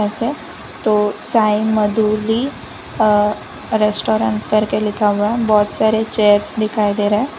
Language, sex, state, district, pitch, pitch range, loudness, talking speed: Hindi, female, Gujarat, Valsad, 215 Hz, 210-220 Hz, -16 LUFS, 120 wpm